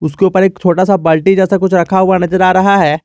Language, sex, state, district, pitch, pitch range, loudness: Hindi, male, Jharkhand, Garhwa, 185 Hz, 175-190 Hz, -11 LUFS